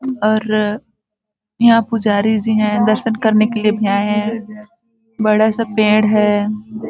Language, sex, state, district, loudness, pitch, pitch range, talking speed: Hindi, female, Chhattisgarh, Balrampur, -15 LUFS, 215 Hz, 210-220 Hz, 140 wpm